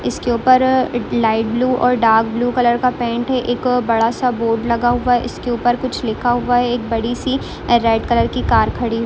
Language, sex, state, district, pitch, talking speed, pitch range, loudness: Hindi, female, Bihar, Darbhanga, 240 Hz, 220 wpm, 230-245 Hz, -16 LUFS